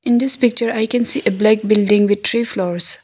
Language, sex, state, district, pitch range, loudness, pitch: English, female, Arunachal Pradesh, Longding, 205-240 Hz, -15 LUFS, 220 Hz